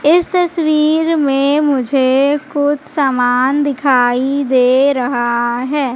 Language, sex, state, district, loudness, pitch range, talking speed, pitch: Hindi, female, Madhya Pradesh, Katni, -14 LUFS, 255-295 Hz, 100 wpm, 275 Hz